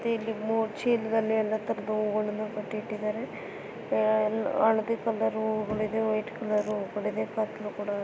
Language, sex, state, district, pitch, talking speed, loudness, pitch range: Kannada, female, Karnataka, Belgaum, 215 Hz, 155 wpm, -29 LUFS, 215-220 Hz